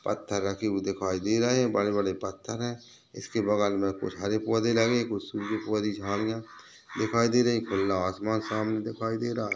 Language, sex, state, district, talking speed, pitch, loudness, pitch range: Hindi, male, Chhattisgarh, Balrampur, 205 wpm, 110 Hz, -28 LUFS, 100-115 Hz